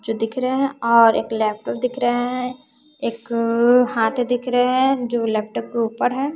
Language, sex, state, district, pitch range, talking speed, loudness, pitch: Hindi, female, Bihar, West Champaran, 230-255 Hz, 200 wpm, -20 LUFS, 245 Hz